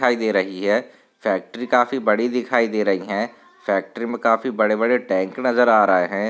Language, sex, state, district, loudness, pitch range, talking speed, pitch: Hindi, male, Maharashtra, Nagpur, -20 LUFS, 105-125 Hz, 200 wpm, 115 Hz